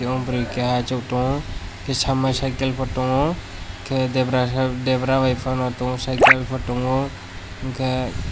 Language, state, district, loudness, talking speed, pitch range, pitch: Kokborok, Tripura, West Tripura, -21 LUFS, 135 wpm, 125-130 Hz, 130 Hz